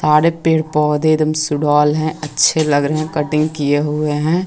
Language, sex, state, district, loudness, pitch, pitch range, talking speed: Hindi, female, Bihar, Jahanabad, -16 LUFS, 150 Hz, 150-155 Hz, 190 wpm